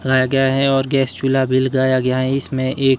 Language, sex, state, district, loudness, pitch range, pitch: Hindi, male, Himachal Pradesh, Shimla, -17 LUFS, 130-135 Hz, 130 Hz